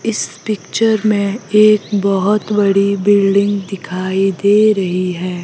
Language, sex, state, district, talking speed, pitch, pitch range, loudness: Hindi, female, Himachal Pradesh, Shimla, 120 wpm, 200 Hz, 195-210 Hz, -14 LUFS